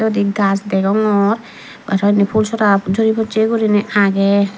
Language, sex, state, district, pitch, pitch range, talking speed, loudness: Chakma, female, Tripura, Dhalai, 205 Hz, 200-220 Hz, 130 wpm, -15 LUFS